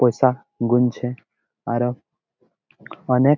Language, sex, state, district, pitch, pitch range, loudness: Bengali, male, West Bengal, Malda, 125 Hz, 120-125 Hz, -21 LUFS